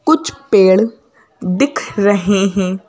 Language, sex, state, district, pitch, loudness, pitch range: Hindi, female, Madhya Pradesh, Bhopal, 200 Hz, -14 LUFS, 195-250 Hz